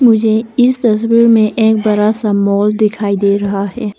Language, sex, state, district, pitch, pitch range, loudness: Hindi, female, Arunachal Pradesh, Papum Pare, 215 Hz, 205-225 Hz, -12 LUFS